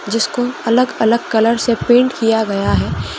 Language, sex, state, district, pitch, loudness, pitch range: Hindi, female, Chhattisgarh, Korba, 230 Hz, -15 LUFS, 225-245 Hz